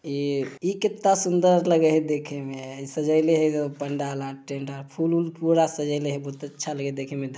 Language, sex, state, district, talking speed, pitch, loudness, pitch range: Maithili, male, Bihar, Samastipur, 210 wpm, 145 Hz, -24 LUFS, 140-165 Hz